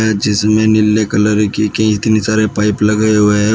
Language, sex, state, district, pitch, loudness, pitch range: Hindi, male, Uttar Pradesh, Shamli, 105 Hz, -13 LUFS, 105-110 Hz